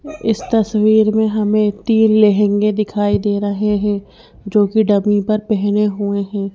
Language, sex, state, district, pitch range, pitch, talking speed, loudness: Hindi, female, Madhya Pradesh, Bhopal, 205-215 Hz, 210 Hz, 155 wpm, -15 LUFS